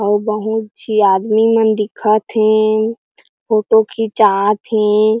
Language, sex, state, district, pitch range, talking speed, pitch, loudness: Chhattisgarhi, female, Chhattisgarh, Jashpur, 210-220 Hz, 115 wpm, 215 Hz, -14 LUFS